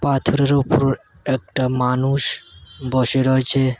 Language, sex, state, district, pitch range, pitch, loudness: Bengali, male, West Bengal, Cooch Behar, 130-135 Hz, 130 Hz, -18 LUFS